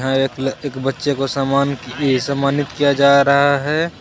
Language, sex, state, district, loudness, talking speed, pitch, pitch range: Hindi, male, Jharkhand, Garhwa, -17 LUFS, 195 wpm, 140 Hz, 135-140 Hz